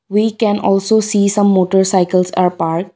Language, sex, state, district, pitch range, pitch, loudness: English, female, Assam, Kamrup Metropolitan, 185-210 Hz, 195 Hz, -14 LUFS